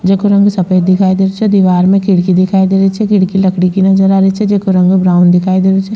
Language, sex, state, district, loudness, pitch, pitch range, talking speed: Rajasthani, female, Rajasthan, Churu, -10 LUFS, 190 Hz, 185-195 Hz, 280 wpm